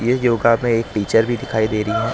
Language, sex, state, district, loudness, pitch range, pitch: Hindi, male, Maharashtra, Mumbai Suburban, -18 LUFS, 110-120 Hz, 115 Hz